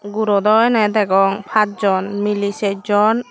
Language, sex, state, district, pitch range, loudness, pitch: Chakma, female, Tripura, Dhalai, 200-215 Hz, -16 LUFS, 205 Hz